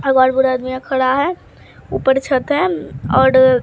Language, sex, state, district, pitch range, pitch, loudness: Hindi, male, Bihar, Katihar, 260-270 Hz, 265 Hz, -16 LUFS